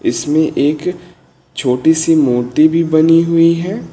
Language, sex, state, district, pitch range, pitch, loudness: Hindi, male, Uttar Pradesh, Lucknow, 150-170 Hz, 160 Hz, -13 LUFS